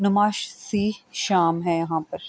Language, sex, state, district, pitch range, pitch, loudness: Urdu, female, Andhra Pradesh, Anantapur, 170-210 Hz, 200 Hz, -24 LUFS